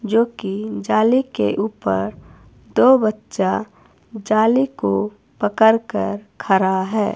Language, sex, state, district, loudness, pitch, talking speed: Hindi, female, Himachal Pradesh, Shimla, -19 LUFS, 205 Hz, 110 wpm